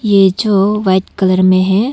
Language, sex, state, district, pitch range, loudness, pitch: Hindi, female, Arunachal Pradesh, Longding, 190-205 Hz, -12 LUFS, 195 Hz